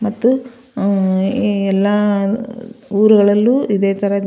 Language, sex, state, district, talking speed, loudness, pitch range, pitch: Kannada, female, Karnataka, Belgaum, 85 wpm, -15 LUFS, 200-235 Hz, 205 Hz